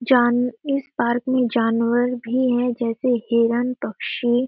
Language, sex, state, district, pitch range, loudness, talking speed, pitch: Hindi, female, Chhattisgarh, Sarguja, 235-255 Hz, -21 LUFS, 135 wpm, 245 Hz